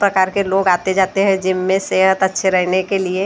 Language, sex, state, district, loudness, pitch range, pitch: Hindi, female, Maharashtra, Gondia, -16 LUFS, 185-195 Hz, 190 Hz